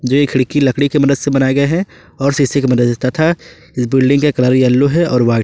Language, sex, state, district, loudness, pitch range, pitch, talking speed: Hindi, male, Jharkhand, Ranchi, -14 LUFS, 125-145 Hz, 140 Hz, 265 wpm